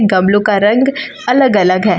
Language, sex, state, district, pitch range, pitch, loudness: Hindi, female, Jharkhand, Palamu, 195-250 Hz, 210 Hz, -12 LUFS